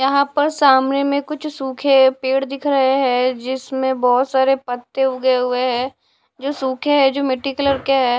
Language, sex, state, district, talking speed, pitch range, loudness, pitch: Hindi, female, Odisha, Sambalpur, 185 wpm, 260-275 Hz, -18 LUFS, 265 Hz